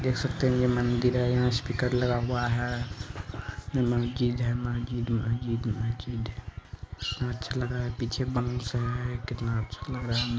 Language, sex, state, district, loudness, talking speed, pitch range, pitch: Hindi, male, Bihar, Araria, -29 LUFS, 185 wpm, 115-125 Hz, 120 Hz